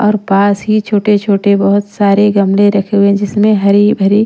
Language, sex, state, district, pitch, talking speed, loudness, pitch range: Hindi, female, Punjab, Pathankot, 205 Hz, 185 wpm, -11 LUFS, 200-210 Hz